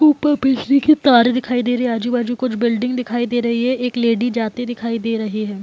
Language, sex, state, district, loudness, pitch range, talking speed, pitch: Hindi, female, Bihar, Gopalganj, -17 LUFS, 235-250 Hz, 245 wpm, 245 Hz